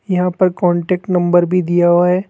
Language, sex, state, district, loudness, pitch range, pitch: Hindi, male, Rajasthan, Jaipur, -14 LUFS, 175-185 Hz, 180 Hz